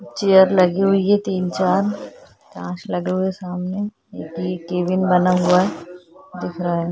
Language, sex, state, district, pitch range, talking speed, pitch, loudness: Hindi, female, Chhattisgarh, Korba, 180-190 Hz, 165 wpm, 180 Hz, -19 LUFS